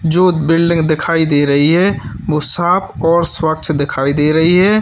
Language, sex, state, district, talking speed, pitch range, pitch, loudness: Hindi, male, Uttar Pradesh, Lalitpur, 175 wpm, 150-170 Hz, 160 Hz, -13 LUFS